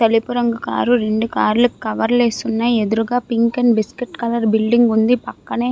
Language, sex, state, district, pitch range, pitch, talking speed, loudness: Telugu, female, Andhra Pradesh, Visakhapatnam, 225-245 Hz, 235 Hz, 200 wpm, -17 LUFS